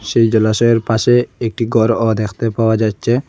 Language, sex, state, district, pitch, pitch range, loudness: Bengali, male, Assam, Hailakandi, 115 Hz, 110-115 Hz, -15 LUFS